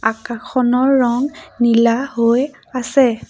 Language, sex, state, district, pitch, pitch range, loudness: Assamese, female, Assam, Sonitpur, 245 Hz, 235-265 Hz, -16 LUFS